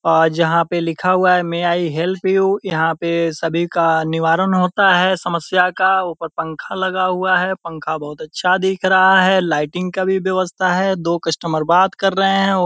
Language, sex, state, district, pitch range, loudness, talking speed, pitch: Hindi, male, Bihar, Purnia, 165-190 Hz, -17 LUFS, 200 wpm, 180 Hz